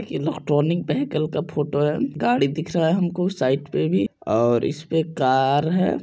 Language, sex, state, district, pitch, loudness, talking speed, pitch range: Maithili, male, Bihar, Supaul, 150 Hz, -22 LUFS, 190 wpm, 140-165 Hz